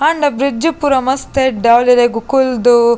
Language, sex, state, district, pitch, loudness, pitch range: Tulu, female, Karnataka, Dakshina Kannada, 260 Hz, -13 LUFS, 240-275 Hz